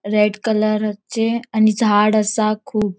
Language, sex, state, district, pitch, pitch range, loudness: Konkani, female, Goa, North and South Goa, 215 Hz, 210-220 Hz, -18 LUFS